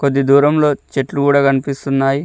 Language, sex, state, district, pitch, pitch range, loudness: Telugu, male, Telangana, Mahabubabad, 140 Hz, 135-140 Hz, -14 LUFS